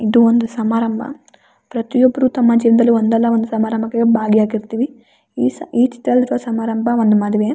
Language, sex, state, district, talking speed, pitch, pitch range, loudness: Kannada, female, Karnataka, Raichur, 135 wpm, 230 Hz, 225-245 Hz, -16 LUFS